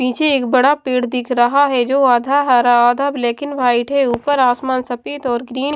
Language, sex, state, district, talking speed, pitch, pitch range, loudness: Hindi, female, Haryana, Jhajjar, 220 wpm, 255 Hz, 245-280 Hz, -15 LUFS